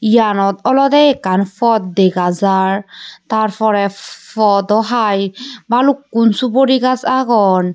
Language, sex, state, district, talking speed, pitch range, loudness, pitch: Chakma, female, Tripura, Unakoti, 110 wpm, 195-250 Hz, -14 LUFS, 220 Hz